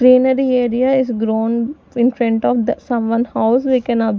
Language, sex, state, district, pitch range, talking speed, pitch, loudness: English, female, Punjab, Fazilka, 230-255 Hz, 185 wpm, 240 Hz, -16 LUFS